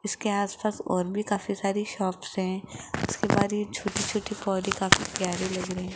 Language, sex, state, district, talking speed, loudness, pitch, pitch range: Hindi, female, Rajasthan, Jaipur, 180 wpm, -28 LUFS, 195 Hz, 185-210 Hz